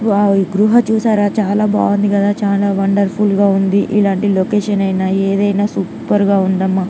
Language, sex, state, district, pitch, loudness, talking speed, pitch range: Telugu, female, Andhra Pradesh, Anantapur, 200 Hz, -14 LUFS, 180 wpm, 195-205 Hz